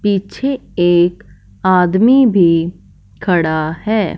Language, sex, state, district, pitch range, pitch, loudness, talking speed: Hindi, male, Punjab, Fazilka, 160-205 Hz, 180 Hz, -14 LUFS, 85 wpm